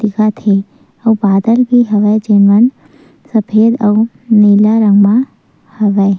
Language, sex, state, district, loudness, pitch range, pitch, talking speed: Chhattisgarhi, female, Chhattisgarh, Sukma, -11 LUFS, 205-225 Hz, 215 Hz, 135 wpm